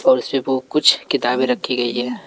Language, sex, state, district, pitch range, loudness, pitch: Hindi, male, Bihar, West Champaran, 125-135 Hz, -18 LUFS, 130 Hz